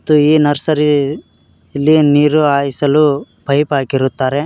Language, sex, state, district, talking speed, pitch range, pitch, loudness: Kannada, male, Karnataka, Koppal, 105 wpm, 140-150 Hz, 145 Hz, -13 LUFS